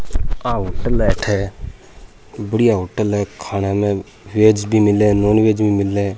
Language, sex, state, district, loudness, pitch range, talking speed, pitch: Rajasthani, male, Rajasthan, Churu, -17 LUFS, 100-110 Hz, 155 wpm, 105 Hz